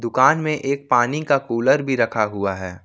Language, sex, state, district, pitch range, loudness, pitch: Hindi, male, Jharkhand, Ranchi, 115-140 Hz, -19 LUFS, 130 Hz